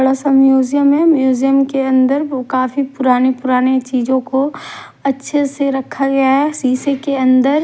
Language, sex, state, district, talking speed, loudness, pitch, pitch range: Hindi, female, Odisha, Khordha, 155 wpm, -14 LUFS, 270 Hz, 260-280 Hz